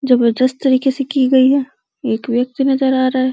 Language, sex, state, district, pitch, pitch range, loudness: Hindi, female, Uttar Pradesh, Deoria, 260 Hz, 255-270 Hz, -15 LUFS